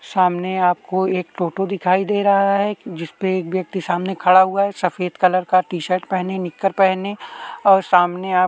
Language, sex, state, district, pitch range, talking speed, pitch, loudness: Hindi, male, Uttarakhand, Tehri Garhwal, 180-195 Hz, 185 wpm, 185 Hz, -18 LUFS